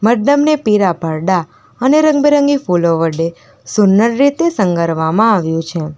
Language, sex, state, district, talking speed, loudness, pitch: Gujarati, female, Gujarat, Valsad, 120 wpm, -13 LUFS, 195 Hz